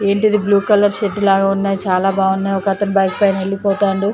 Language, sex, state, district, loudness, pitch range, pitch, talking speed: Telugu, female, Andhra Pradesh, Chittoor, -15 LUFS, 195-205 Hz, 195 Hz, 175 wpm